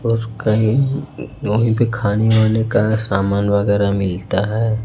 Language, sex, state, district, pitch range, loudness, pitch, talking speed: Hindi, male, Chhattisgarh, Raipur, 100-115 Hz, -17 LUFS, 110 Hz, 135 wpm